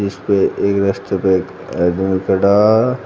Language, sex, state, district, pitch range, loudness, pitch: Hindi, male, Uttar Pradesh, Shamli, 95-100 Hz, -15 LUFS, 100 Hz